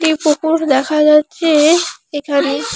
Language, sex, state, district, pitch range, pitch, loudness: Bengali, female, West Bengal, Alipurduar, 290-320 Hz, 300 Hz, -13 LUFS